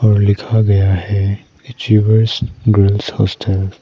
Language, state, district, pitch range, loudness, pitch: Hindi, Arunachal Pradesh, Papum Pare, 100-110 Hz, -14 LUFS, 105 Hz